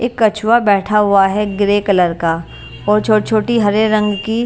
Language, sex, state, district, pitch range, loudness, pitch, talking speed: Hindi, female, Punjab, Kapurthala, 200-220 Hz, -14 LUFS, 210 Hz, 190 wpm